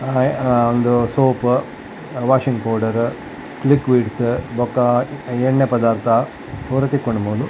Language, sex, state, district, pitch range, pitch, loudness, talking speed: Tulu, male, Karnataka, Dakshina Kannada, 120-130 Hz, 125 Hz, -18 LUFS, 105 wpm